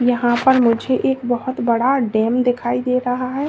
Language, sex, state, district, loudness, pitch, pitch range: Hindi, female, Uttar Pradesh, Lalitpur, -18 LUFS, 245 Hz, 240-255 Hz